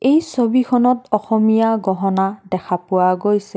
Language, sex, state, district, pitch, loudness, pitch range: Assamese, female, Assam, Kamrup Metropolitan, 210 Hz, -17 LUFS, 190-245 Hz